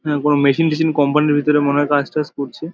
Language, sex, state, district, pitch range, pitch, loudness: Bengali, male, West Bengal, Jalpaiguri, 145-150 Hz, 145 Hz, -16 LUFS